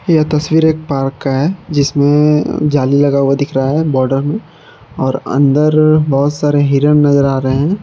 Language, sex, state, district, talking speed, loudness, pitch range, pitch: Hindi, male, Jharkhand, Palamu, 185 wpm, -13 LUFS, 140-150 Hz, 145 Hz